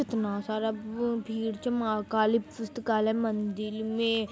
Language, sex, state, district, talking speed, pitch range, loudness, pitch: Magahi, female, Bihar, Jamui, 140 wpm, 215-230 Hz, -30 LUFS, 220 Hz